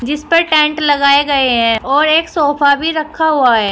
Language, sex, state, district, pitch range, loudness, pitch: Hindi, female, Uttar Pradesh, Shamli, 275-310 Hz, -12 LUFS, 290 Hz